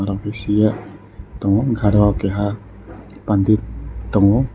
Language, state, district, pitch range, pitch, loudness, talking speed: Kokborok, Tripura, West Tripura, 100-105 Hz, 105 Hz, -18 LUFS, 90 wpm